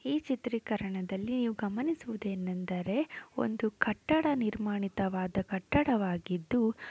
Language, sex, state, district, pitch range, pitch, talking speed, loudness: Kannada, female, Karnataka, Shimoga, 195-245 Hz, 215 Hz, 60 wpm, -33 LUFS